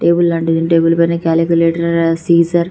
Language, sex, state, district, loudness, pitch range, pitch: Telugu, female, Telangana, Karimnagar, -13 LUFS, 165-170 Hz, 170 Hz